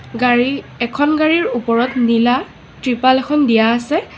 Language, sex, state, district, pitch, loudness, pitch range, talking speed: Assamese, female, Assam, Sonitpur, 250 Hz, -15 LUFS, 240-290 Hz, 130 wpm